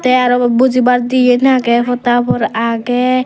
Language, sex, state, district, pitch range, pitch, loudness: Chakma, female, Tripura, Dhalai, 240-255 Hz, 245 Hz, -12 LUFS